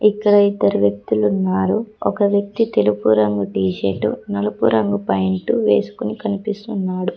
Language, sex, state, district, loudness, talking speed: Telugu, female, Telangana, Komaram Bheem, -18 LUFS, 110 wpm